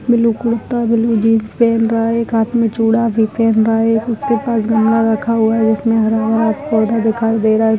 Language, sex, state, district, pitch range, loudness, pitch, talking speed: Hindi, female, Rajasthan, Nagaur, 220-230 Hz, -14 LUFS, 225 Hz, 225 wpm